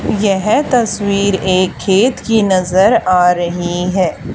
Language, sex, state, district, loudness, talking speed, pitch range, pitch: Hindi, male, Haryana, Charkhi Dadri, -13 LUFS, 125 wpm, 180-210 Hz, 190 Hz